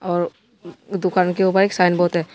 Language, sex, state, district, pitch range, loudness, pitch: Hindi, male, Tripura, West Tripura, 175-195 Hz, -19 LUFS, 185 Hz